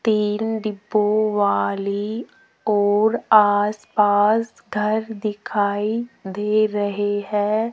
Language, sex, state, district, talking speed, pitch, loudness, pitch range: Hindi, female, Rajasthan, Jaipur, 80 wpm, 210 Hz, -20 LUFS, 205-220 Hz